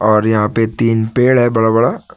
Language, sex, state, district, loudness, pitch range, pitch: Hindi, male, Jharkhand, Deoghar, -13 LUFS, 110-120 Hz, 115 Hz